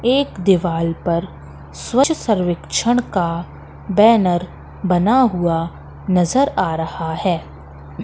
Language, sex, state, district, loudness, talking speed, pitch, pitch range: Hindi, female, Madhya Pradesh, Katni, -18 LUFS, 95 wpm, 180 Hz, 165-220 Hz